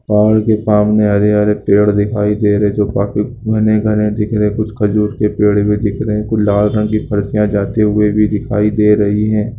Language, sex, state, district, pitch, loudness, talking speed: Hindi, male, Bihar, Lakhisarai, 105 Hz, -13 LUFS, 195 wpm